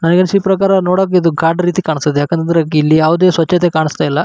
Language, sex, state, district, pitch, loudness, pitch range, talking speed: Kannada, male, Karnataka, Raichur, 165 Hz, -13 LUFS, 155-185 Hz, 185 wpm